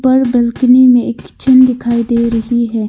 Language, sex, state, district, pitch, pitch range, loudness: Hindi, female, Arunachal Pradesh, Longding, 240 Hz, 235-255 Hz, -11 LUFS